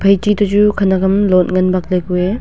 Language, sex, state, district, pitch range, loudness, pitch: Wancho, female, Arunachal Pradesh, Longding, 185-205 Hz, -14 LUFS, 190 Hz